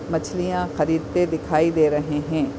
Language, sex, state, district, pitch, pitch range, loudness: Hindi, female, Maharashtra, Aurangabad, 160 Hz, 150-165 Hz, -22 LUFS